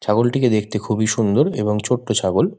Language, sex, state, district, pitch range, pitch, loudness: Bengali, male, West Bengal, Malda, 105-120 Hz, 110 Hz, -19 LUFS